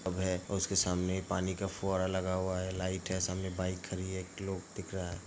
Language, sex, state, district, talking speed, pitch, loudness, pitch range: Hindi, male, Uttar Pradesh, Hamirpur, 225 wpm, 95 Hz, -35 LUFS, 90-95 Hz